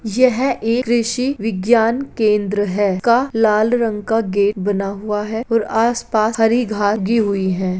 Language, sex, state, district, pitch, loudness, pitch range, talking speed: Hindi, female, Uttar Pradesh, Jalaun, 220 Hz, -17 LUFS, 205-235 Hz, 160 wpm